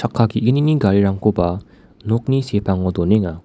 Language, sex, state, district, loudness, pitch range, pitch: Garo, male, Meghalaya, West Garo Hills, -18 LUFS, 95-115 Hz, 105 Hz